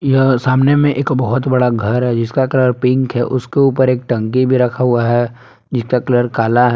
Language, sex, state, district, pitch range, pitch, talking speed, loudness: Hindi, male, Jharkhand, Palamu, 120-130 Hz, 125 Hz, 215 wpm, -14 LUFS